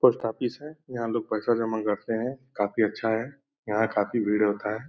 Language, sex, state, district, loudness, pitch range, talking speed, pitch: Hindi, male, Bihar, Purnia, -27 LUFS, 105-125 Hz, 210 wpm, 115 Hz